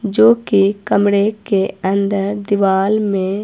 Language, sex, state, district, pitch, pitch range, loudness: Hindi, female, Himachal Pradesh, Shimla, 200 Hz, 195-210 Hz, -15 LUFS